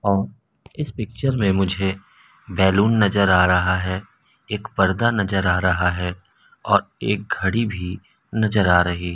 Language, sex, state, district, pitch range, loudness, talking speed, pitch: Hindi, male, Madhya Pradesh, Umaria, 90-105 Hz, -20 LUFS, 150 wpm, 95 Hz